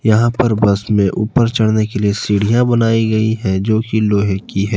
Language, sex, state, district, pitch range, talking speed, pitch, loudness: Hindi, male, Jharkhand, Palamu, 100-115 Hz, 215 wpm, 110 Hz, -15 LUFS